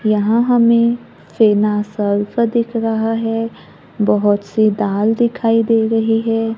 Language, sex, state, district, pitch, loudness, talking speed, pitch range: Hindi, female, Maharashtra, Gondia, 225 Hz, -16 LUFS, 110 wpm, 210-230 Hz